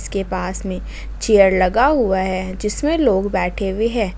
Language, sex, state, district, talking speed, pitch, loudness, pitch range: Hindi, female, Jharkhand, Ranchi, 170 wpm, 195 Hz, -18 LUFS, 185-215 Hz